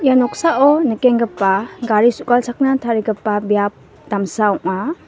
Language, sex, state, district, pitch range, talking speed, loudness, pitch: Garo, female, Meghalaya, West Garo Hills, 205-260 Hz, 105 wpm, -16 LUFS, 230 Hz